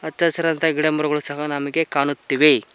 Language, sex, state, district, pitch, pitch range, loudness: Kannada, male, Karnataka, Koppal, 150 Hz, 145-160 Hz, -20 LUFS